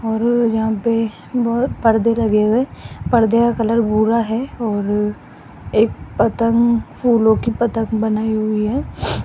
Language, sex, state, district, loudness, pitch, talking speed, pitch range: Hindi, female, Rajasthan, Jaipur, -17 LUFS, 225 Hz, 135 wpm, 220-235 Hz